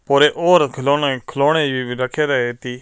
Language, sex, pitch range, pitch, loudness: Punjabi, male, 130-150 Hz, 140 Hz, -17 LUFS